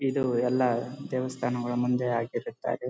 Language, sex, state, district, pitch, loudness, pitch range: Kannada, male, Karnataka, Bellary, 125 Hz, -29 LUFS, 120-130 Hz